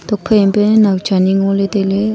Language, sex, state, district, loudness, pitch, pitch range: Wancho, female, Arunachal Pradesh, Longding, -13 LUFS, 200 Hz, 195-210 Hz